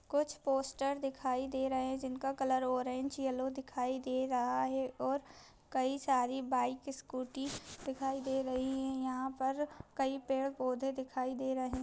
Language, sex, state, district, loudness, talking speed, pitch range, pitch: Hindi, female, Chhattisgarh, Raigarh, -37 LUFS, 155 wpm, 255-270 Hz, 265 Hz